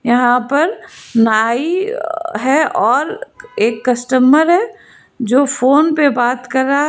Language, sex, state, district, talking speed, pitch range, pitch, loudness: Hindi, female, Karnataka, Bangalore, 130 wpm, 245-315 Hz, 265 Hz, -14 LUFS